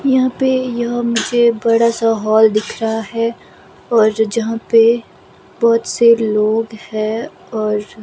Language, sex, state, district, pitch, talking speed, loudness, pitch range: Hindi, female, Himachal Pradesh, Shimla, 230 Hz, 135 wpm, -15 LUFS, 220-235 Hz